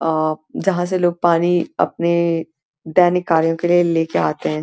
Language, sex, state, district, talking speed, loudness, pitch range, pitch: Hindi, female, Uttarakhand, Uttarkashi, 180 wpm, -18 LUFS, 160-175 Hz, 170 Hz